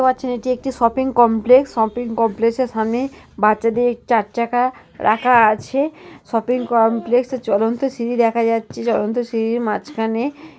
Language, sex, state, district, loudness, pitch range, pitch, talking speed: Bengali, female, West Bengal, North 24 Parganas, -18 LUFS, 225-255 Hz, 235 Hz, 160 wpm